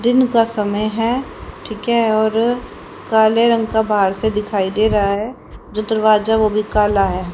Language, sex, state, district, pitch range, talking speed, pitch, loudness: Hindi, female, Haryana, Rohtak, 210-225 Hz, 180 wpm, 220 Hz, -17 LUFS